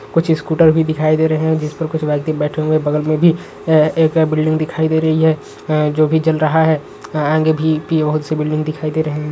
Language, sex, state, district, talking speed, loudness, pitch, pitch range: Hindi, male, Uttar Pradesh, Varanasi, 230 wpm, -16 LUFS, 155 Hz, 155-160 Hz